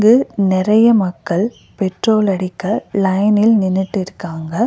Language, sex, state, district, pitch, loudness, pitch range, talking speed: Tamil, female, Tamil Nadu, Nilgiris, 195 Hz, -16 LUFS, 185-215 Hz, 105 wpm